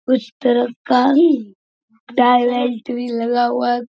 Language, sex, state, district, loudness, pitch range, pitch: Hindi, male, Bihar, Darbhanga, -17 LUFS, 240-250 Hz, 245 Hz